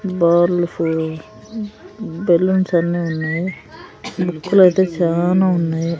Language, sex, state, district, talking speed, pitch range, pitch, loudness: Telugu, female, Andhra Pradesh, Sri Satya Sai, 90 wpm, 165-185 Hz, 175 Hz, -17 LUFS